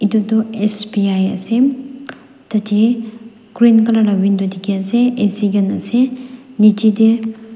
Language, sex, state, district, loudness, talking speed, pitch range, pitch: Nagamese, female, Nagaland, Dimapur, -15 LUFS, 125 wpm, 205-235 Hz, 220 Hz